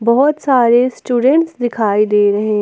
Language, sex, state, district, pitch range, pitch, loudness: Hindi, female, Jharkhand, Ranchi, 215-260 Hz, 240 Hz, -13 LUFS